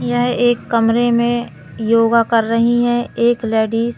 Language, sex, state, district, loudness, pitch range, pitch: Hindi, female, Madhya Pradesh, Katni, -16 LUFS, 230-240 Hz, 235 Hz